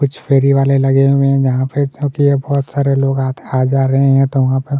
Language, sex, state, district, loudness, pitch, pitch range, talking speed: Hindi, male, Chhattisgarh, Kabirdham, -14 LUFS, 135 Hz, 135-140 Hz, 225 wpm